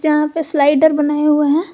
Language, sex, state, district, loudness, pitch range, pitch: Hindi, female, Jharkhand, Garhwa, -14 LUFS, 295-315 Hz, 300 Hz